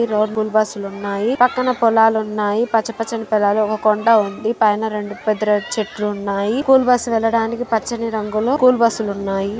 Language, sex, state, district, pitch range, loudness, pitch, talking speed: Telugu, female, Andhra Pradesh, Chittoor, 210-230 Hz, -18 LUFS, 220 Hz, 150 wpm